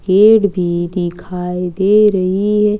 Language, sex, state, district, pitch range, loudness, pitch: Hindi, female, Jharkhand, Ranchi, 180-210 Hz, -14 LUFS, 190 Hz